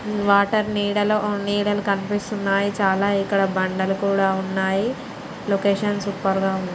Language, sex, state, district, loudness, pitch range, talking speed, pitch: Telugu, female, Andhra Pradesh, Srikakulam, -21 LUFS, 195-205 Hz, 125 wpm, 200 Hz